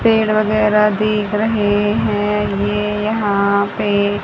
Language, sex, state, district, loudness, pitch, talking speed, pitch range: Hindi, female, Haryana, Charkhi Dadri, -16 LUFS, 210 Hz, 115 wpm, 205-215 Hz